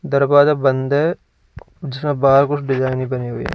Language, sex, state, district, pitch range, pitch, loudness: Hindi, male, Uttar Pradesh, Lalitpur, 130-145 Hz, 140 Hz, -17 LUFS